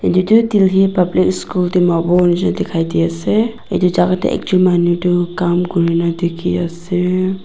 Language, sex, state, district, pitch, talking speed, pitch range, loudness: Nagamese, female, Nagaland, Dimapur, 180 Hz, 145 wpm, 175-185 Hz, -15 LUFS